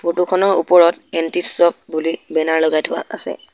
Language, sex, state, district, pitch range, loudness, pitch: Assamese, male, Assam, Sonitpur, 160-175 Hz, -16 LUFS, 170 Hz